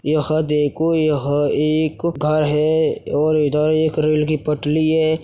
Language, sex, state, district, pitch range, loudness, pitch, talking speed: Hindi, male, Uttar Pradesh, Hamirpur, 150-155 Hz, -18 LUFS, 155 Hz, 150 wpm